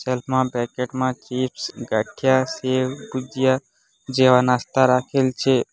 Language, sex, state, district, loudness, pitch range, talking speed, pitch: Gujarati, male, Gujarat, Valsad, -21 LUFS, 125-130 Hz, 125 wpm, 130 Hz